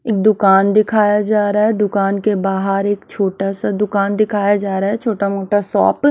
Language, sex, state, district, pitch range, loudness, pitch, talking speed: Hindi, female, Himachal Pradesh, Shimla, 195-210 Hz, -16 LUFS, 205 Hz, 195 wpm